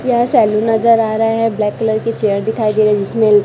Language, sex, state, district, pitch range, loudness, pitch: Hindi, female, Chhattisgarh, Raipur, 210-225 Hz, -14 LUFS, 220 Hz